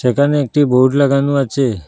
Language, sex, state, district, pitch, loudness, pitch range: Bengali, male, Assam, Hailakandi, 140 Hz, -14 LUFS, 130-140 Hz